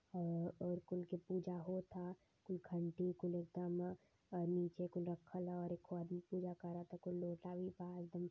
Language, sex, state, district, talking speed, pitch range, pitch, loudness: Hindi, male, Uttar Pradesh, Varanasi, 180 wpm, 175-180 Hz, 180 Hz, -46 LUFS